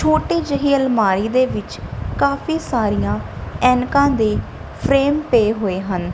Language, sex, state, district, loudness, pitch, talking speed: Punjabi, female, Punjab, Kapurthala, -18 LUFS, 220 Hz, 125 wpm